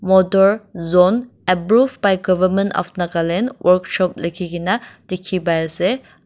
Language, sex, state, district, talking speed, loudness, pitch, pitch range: Nagamese, female, Nagaland, Dimapur, 125 wpm, -17 LUFS, 185 Hz, 175-200 Hz